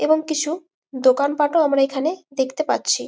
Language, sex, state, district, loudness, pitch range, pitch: Bengali, female, West Bengal, Malda, -20 LUFS, 275-315 Hz, 295 Hz